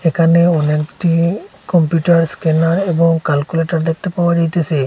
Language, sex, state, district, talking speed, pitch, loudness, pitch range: Bengali, male, Assam, Hailakandi, 110 wpm, 165 Hz, -15 LUFS, 160-170 Hz